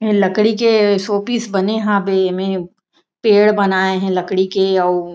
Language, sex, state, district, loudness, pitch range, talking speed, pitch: Chhattisgarhi, female, Chhattisgarh, Raigarh, -15 LUFS, 190-210 Hz, 150 wpm, 195 Hz